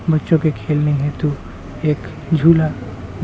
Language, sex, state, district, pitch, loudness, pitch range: Hindi, male, Bihar, Muzaffarpur, 150 Hz, -17 LUFS, 150-160 Hz